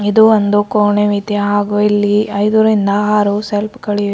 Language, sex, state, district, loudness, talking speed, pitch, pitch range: Kannada, female, Karnataka, Bidar, -13 LUFS, 130 wpm, 205 Hz, 205-210 Hz